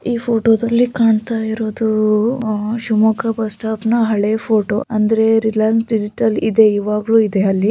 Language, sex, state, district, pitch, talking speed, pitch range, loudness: Kannada, female, Karnataka, Shimoga, 220 Hz, 150 wpm, 215-225 Hz, -16 LUFS